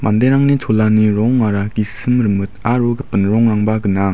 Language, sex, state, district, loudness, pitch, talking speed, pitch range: Garo, male, Meghalaya, West Garo Hills, -15 LUFS, 110 Hz, 130 wpm, 105-120 Hz